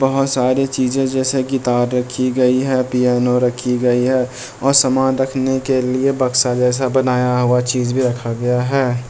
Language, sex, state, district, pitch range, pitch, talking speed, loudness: Hindi, male, Bihar, Bhagalpur, 125-130 Hz, 125 Hz, 180 wpm, -16 LUFS